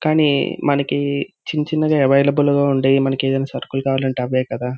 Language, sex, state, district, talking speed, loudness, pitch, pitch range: Telugu, male, Andhra Pradesh, Visakhapatnam, 165 wpm, -18 LUFS, 140 Hz, 135-145 Hz